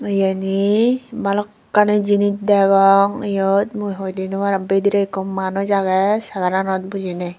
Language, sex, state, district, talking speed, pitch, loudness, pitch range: Chakma, female, Tripura, Dhalai, 145 wpm, 195 Hz, -18 LUFS, 190-205 Hz